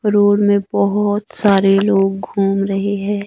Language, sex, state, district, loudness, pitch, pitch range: Hindi, male, Himachal Pradesh, Shimla, -15 LUFS, 200 Hz, 195-205 Hz